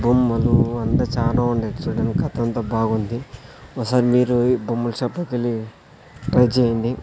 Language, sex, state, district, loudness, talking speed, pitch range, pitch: Telugu, male, Andhra Pradesh, Sri Satya Sai, -20 LUFS, 135 wpm, 115-125 Hz, 120 Hz